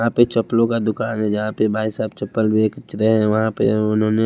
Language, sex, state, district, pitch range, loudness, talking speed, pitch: Hindi, male, Himachal Pradesh, Shimla, 110-115 Hz, -19 LUFS, 240 wpm, 110 Hz